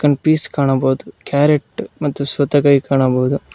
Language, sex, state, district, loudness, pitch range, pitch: Kannada, male, Karnataka, Koppal, -16 LUFS, 135-145 Hz, 140 Hz